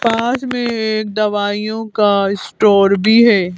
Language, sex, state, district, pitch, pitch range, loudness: Hindi, female, Madhya Pradesh, Bhopal, 215 Hz, 205-230 Hz, -15 LUFS